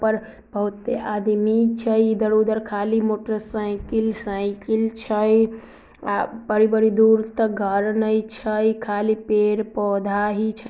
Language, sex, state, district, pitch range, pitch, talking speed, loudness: Maithili, female, Bihar, Samastipur, 210-220 Hz, 220 Hz, 120 wpm, -21 LUFS